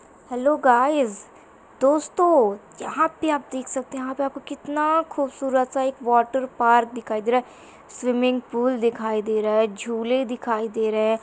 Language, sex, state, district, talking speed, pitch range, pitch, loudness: Hindi, female, Uttar Pradesh, Muzaffarnagar, 175 wpm, 230-275 Hz, 250 Hz, -22 LUFS